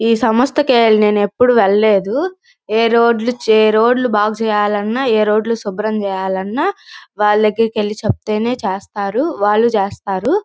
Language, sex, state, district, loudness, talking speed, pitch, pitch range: Telugu, female, Andhra Pradesh, Guntur, -15 LUFS, 145 wpm, 220 Hz, 210-235 Hz